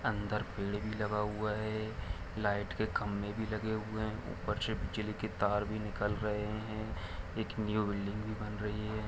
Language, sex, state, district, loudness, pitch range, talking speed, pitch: Hindi, male, Jharkhand, Jamtara, -37 LUFS, 105-110 Hz, 170 wpm, 105 Hz